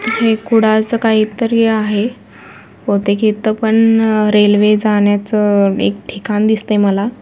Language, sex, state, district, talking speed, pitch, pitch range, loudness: Marathi, female, Maharashtra, Sindhudurg, 115 wpm, 215 Hz, 205-225 Hz, -13 LUFS